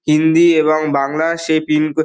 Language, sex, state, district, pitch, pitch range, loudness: Bengali, male, West Bengal, Dakshin Dinajpur, 155 Hz, 155-160 Hz, -14 LUFS